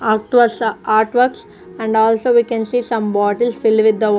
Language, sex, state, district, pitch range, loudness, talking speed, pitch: English, female, Punjab, Fazilka, 220-240 Hz, -15 LUFS, 230 wpm, 225 Hz